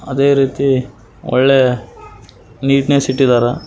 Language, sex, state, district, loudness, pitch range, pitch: Kannada, male, Karnataka, Raichur, -14 LUFS, 120-135 Hz, 130 Hz